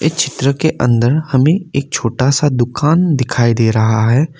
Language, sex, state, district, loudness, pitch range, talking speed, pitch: Hindi, male, Assam, Kamrup Metropolitan, -14 LUFS, 120-150 Hz, 175 wpm, 140 Hz